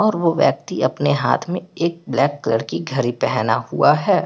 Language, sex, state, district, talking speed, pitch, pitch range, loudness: Hindi, male, Bihar, Patna, 195 wpm, 165 Hz, 135-175 Hz, -19 LUFS